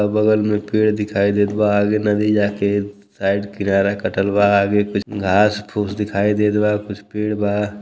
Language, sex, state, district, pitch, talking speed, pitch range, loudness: Bhojpuri, male, Uttar Pradesh, Deoria, 105 Hz, 185 wpm, 100-105 Hz, -18 LUFS